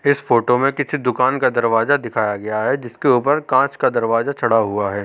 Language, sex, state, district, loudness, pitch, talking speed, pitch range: Hindi, male, Uttar Pradesh, Hamirpur, -18 LUFS, 120 Hz, 225 wpm, 110-135 Hz